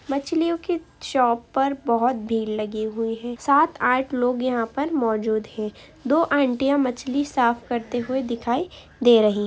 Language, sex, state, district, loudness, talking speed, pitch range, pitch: Hindi, female, Uttar Pradesh, Hamirpur, -23 LUFS, 165 wpm, 230-275 Hz, 245 Hz